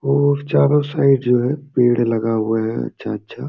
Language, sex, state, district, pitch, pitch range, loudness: Hindi, male, Bihar, Jamui, 125 Hz, 115-145 Hz, -18 LUFS